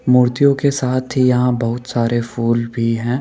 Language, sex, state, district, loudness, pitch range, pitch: Hindi, male, Rajasthan, Jaipur, -17 LUFS, 115-125 Hz, 125 Hz